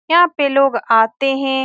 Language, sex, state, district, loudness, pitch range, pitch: Hindi, female, Bihar, Saran, -15 LUFS, 265-280 Hz, 270 Hz